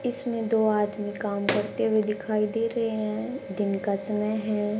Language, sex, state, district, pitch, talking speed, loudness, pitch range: Hindi, female, Haryana, Jhajjar, 210 Hz, 175 wpm, -26 LUFS, 205-225 Hz